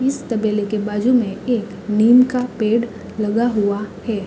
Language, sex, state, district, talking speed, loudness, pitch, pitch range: Hindi, female, Uttar Pradesh, Hamirpur, 170 wpm, -18 LUFS, 220 Hz, 210-240 Hz